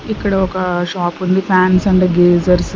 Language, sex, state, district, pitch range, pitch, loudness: Telugu, female, Andhra Pradesh, Sri Satya Sai, 175-190 Hz, 185 Hz, -14 LUFS